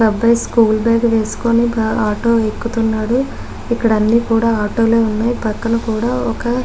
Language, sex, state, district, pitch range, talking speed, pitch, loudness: Telugu, female, Andhra Pradesh, Guntur, 220-235 Hz, 125 wpm, 230 Hz, -16 LUFS